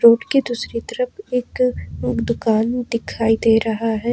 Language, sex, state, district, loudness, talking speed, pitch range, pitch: Hindi, female, Jharkhand, Ranchi, -20 LUFS, 145 wpm, 225-250 Hz, 235 Hz